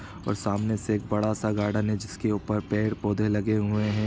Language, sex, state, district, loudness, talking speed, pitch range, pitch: Hindi, male, Bihar, East Champaran, -27 LUFS, 220 wpm, 105-110 Hz, 105 Hz